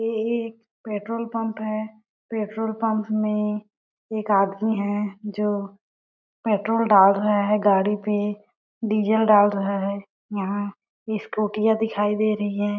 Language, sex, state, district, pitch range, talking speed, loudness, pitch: Hindi, female, Chhattisgarh, Balrampur, 205-220 Hz, 130 wpm, -23 LUFS, 210 Hz